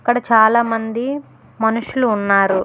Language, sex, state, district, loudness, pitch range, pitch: Telugu, female, Telangana, Hyderabad, -16 LUFS, 220-240 Hz, 225 Hz